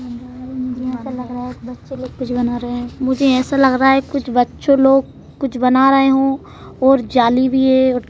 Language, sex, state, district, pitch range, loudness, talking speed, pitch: Hindi, female, Madhya Pradesh, Bhopal, 250-270 Hz, -16 LUFS, 200 wpm, 260 Hz